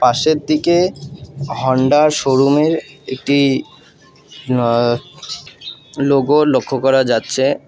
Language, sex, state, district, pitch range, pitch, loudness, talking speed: Bengali, male, West Bengal, Alipurduar, 130-150 Hz, 140 Hz, -15 LUFS, 85 wpm